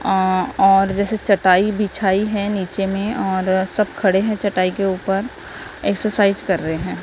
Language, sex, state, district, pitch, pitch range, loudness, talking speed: Hindi, female, Maharashtra, Gondia, 195 Hz, 190-205 Hz, -18 LUFS, 160 wpm